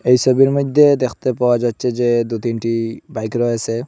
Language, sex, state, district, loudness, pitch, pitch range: Bengali, male, Assam, Hailakandi, -17 LUFS, 120 Hz, 115-130 Hz